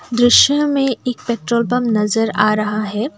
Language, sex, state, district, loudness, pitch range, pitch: Hindi, female, Assam, Kamrup Metropolitan, -15 LUFS, 215-250 Hz, 235 Hz